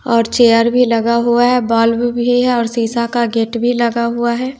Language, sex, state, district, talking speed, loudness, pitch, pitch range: Hindi, female, Bihar, West Champaran, 185 wpm, -14 LUFS, 235 Hz, 230-245 Hz